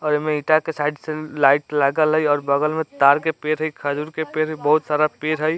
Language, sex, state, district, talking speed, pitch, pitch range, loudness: Bajjika, male, Bihar, Vaishali, 260 wpm, 155 Hz, 145-155 Hz, -20 LUFS